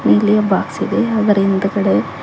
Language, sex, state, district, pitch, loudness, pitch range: Kannada, female, Karnataka, Koppal, 205 Hz, -15 LUFS, 195-210 Hz